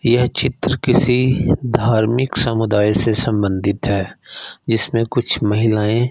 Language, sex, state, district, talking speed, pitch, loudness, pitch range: Hindi, male, Punjab, Fazilka, 110 wpm, 115 Hz, -17 LUFS, 105-125 Hz